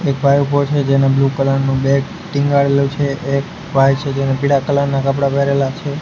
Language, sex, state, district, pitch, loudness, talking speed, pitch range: Gujarati, male, Gujarat, Gandhinagar, 140 Hz, -16 LUFS, 210 wpm, 135-140 Hz